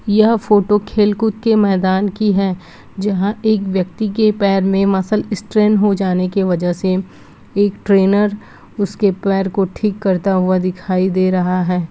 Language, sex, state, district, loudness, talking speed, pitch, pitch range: Hindi, female, Bihar, Gopalganj, -16 LUFS, 160 wpm, 195 Hz, 185-210 Hz